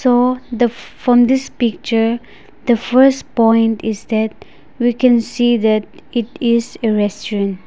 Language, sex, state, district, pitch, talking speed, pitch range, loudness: English, female, Nagaland, Dimapur, 235 Hz, 140 wpm, 220-245 Hz, -16 LUFS